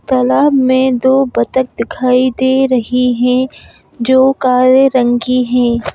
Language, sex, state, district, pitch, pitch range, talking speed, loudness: Hindi, female, Madhya Pradesh, Bhopal, 255 Hz, 250-260 Hz, 130 wpm, -12 LUFS